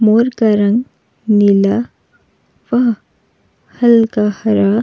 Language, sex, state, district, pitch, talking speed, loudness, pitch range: Hindi, female, Uttar Pradesh, Jalaun, 220 Hz, 100 wpm, -13 LUFS, 210-235 Hz